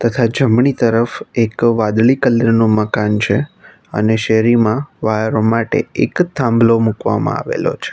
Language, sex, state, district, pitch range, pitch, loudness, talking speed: Gujarati, male, Gujarat, Navsari, 110-120 Hz, 115 Hz, -15 LUFS, 135 wpm